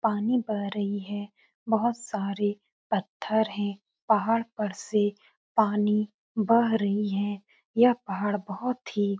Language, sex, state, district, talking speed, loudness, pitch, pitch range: Hindi, female, Uttar Pradesh, Etah, 130 wpm, -27 LUFS, 210 Hz, 205-225 Hz